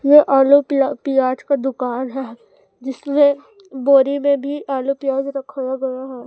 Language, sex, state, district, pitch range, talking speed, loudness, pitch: Hindi, female, Chhattisgarh, Raipur, 265-280 Hz, 155 wpm, -17 LUFS, 270 Hz